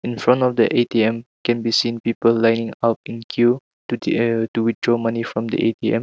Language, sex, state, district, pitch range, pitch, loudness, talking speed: English, male, Nagaland, Kohima, 115-120 Hz, 115 Hz, -20 LUFS, 210 wpm